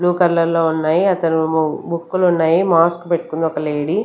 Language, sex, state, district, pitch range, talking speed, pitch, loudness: Telugu, female, Andhra Pradesh, Sri Satya Sai, 160-175 Hz, 180 wpm, 165 Hz, -17 LUFS